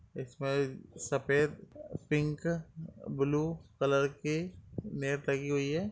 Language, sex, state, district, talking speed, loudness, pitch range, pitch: Hindi, male, Uttar Pradesh, Etah, 100 wpm, -33 LUFS, 140-160 Hz, 145 Hz